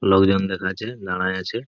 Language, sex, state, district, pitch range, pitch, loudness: Bengali, male, West Bengal, Purulia, 95-100 Hz, 95 Hz, -22 LUFS